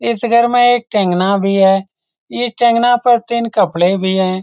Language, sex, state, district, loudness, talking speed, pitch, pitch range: Hindi, male, Bihar, Saran, -13 LUFS, 190 wpm, 230 Hz, 190-240 Hz